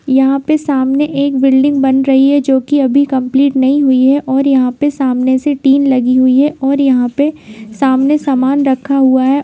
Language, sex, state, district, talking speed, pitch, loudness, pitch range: Hindi, female, Bihar, Jamui, 205 wpm, 270 Hz, -11 LUFS, 260-280 Hz